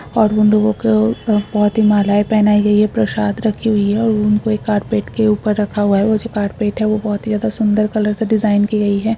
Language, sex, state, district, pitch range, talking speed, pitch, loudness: Hindi, female, Maharashtra, Dhule, 210-220 Hz, 255 wpm, 210 Hz, -15 LUFS